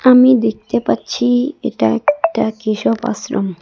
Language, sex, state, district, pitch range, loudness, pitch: Bengali, female, West Bengal, Cooch Behar, 215-255 Hz, -16 LUFS, 235 Hz